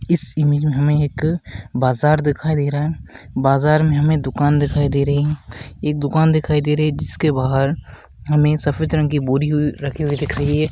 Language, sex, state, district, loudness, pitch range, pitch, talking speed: Hindi, female, Rajasthan, Nagaur, -18 LUFS, 140-150 Hz, 145 Hz, 200 wpm